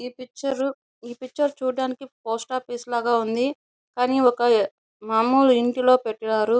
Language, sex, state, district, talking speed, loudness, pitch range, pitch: Telugu, female, Andhra Pradesh, Chittoor, 120 wpm, -22 LUFS, 235-260 Hz, 250 Hz